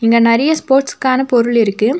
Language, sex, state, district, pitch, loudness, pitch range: Tamil, female, Tamil Nadu, Nilgiris, 240 Hz, -13 LUFS, 230-270 Hz